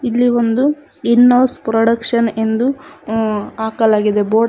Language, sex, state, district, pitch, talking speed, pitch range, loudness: Kannada, female, Karnataka, Koppal, 230 Hz, 135 wpm, 220-245 Hz, -15 LUFS